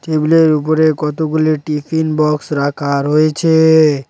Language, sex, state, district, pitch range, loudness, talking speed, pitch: Bengali, male, West Bengal, Cooch Behar, 150-160 Hz, -13 LUFS, 100 wpm, 155 Hz